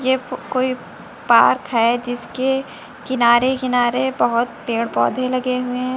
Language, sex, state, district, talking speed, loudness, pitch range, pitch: Hindi, female, Uttar Pradesh, Lucknow, 130 wpm, -18 LUFS, 235-255 Hz, 250 Hz